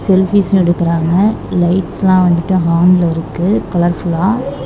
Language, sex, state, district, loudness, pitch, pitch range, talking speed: Tamil, female, Tamil Nadu, Namakkal, -13 LUFS, 180 Hz, 170-190 Hz, 105 wpm